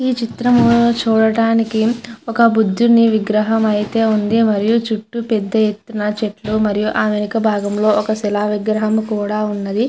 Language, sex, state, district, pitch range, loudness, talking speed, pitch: Telugu, female, Andhra Pradesh, Chittoor, 210-230 Hz, -16 LUFS, 125 wpm, 220 Hz